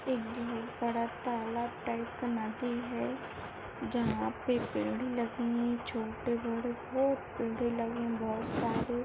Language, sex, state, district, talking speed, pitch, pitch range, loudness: Hindi, female, Maharashtra, Aurangabad, 125 wpm, 235 Hz, 230-240 Hz, -35 LUFS